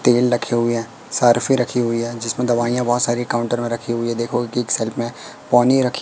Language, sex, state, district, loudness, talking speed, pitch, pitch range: Hindi, female, Madhya Pradesh, Katni, -19 LUFS, 240 wpm, 120 Hz, 115-120 Hz